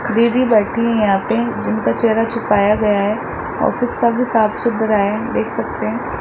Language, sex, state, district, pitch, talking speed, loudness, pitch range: Hindi, male, Rajasthan, Jaipur, 225 Hz, 175 wpm, -17 LUFS, 210-235 Hz